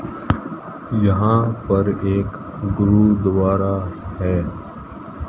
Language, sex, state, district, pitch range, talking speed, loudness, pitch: Hindi, male, Haryana, Jhajjar, 95-105 Hz, 55 wpm, -19 LUFS, 100 Hz